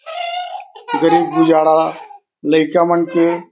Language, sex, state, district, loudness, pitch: Chhattisgarhi, male, Chhattisgarh, Korba, -15 LUFS, 170 Hz